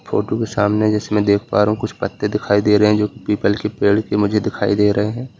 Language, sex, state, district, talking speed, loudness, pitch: Hindi, male, Uttar Pradesh, Lalitpur, 280 wpm, -17 LUFS, 105 Hz